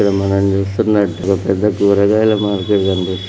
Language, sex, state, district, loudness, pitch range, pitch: Telugu, male, Andhra Pradesh, Srikakulam, -15 LUFS, 95-105 Hz, 100 Hz